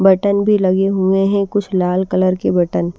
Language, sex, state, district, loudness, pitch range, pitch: Hindi, female, Maharashtra, Washim, -15 LUFS, 185-200 Hz, 190 Hz